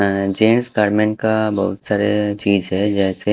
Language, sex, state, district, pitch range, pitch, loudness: Hindi, male, Haryana, Jhajjar, 100-105 Hz, 105 Hz, -17 LUFS